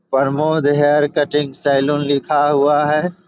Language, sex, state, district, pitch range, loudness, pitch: Hindi, male, Bihar, Begusarai, 145-150 Hz, -16 LUFS, 145 Hz